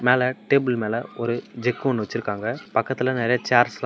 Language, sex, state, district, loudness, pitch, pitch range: Tamil, male, Tamil Nadu, Namakkal, -23 LUFS, 120 Hz, 115-125 Hz